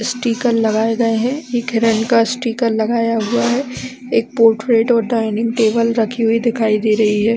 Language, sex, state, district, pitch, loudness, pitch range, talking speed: Hindi, female, Chhattisgarh, Bastar, 230 Hz, -16 LUFS, 225-235 Hz, 165 wpm